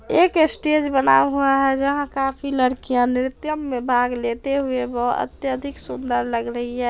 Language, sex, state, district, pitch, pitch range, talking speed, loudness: Hindi, female, Bihar, Darbhanga, 260 Hz, 245-280 Hz, 175 wpm, -20 LUFS